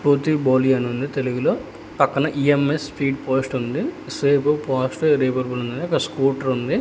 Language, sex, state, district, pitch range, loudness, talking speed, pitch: Telugu, male, Telangana, Hyderabad, 130-145 Hz, -21 LUFS, 140 wpm, 135 Hz